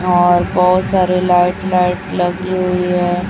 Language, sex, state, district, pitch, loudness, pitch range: Hindi, female, Chhattisgarh, Raipur, 180 Hz, -14 LUFS, 180-185 Hz